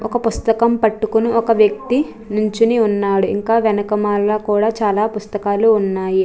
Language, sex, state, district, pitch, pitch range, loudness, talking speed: Telugu, female, Andhra Pradesh, Chittoor, 215 Hz, 205-225 Hz, -16 LUFS, 125 wpm